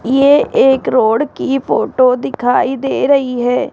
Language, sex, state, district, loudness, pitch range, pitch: Hindi, female, Rajasthan, Jaipur, -13 LUFS, 250-275 Hz, 265 Hz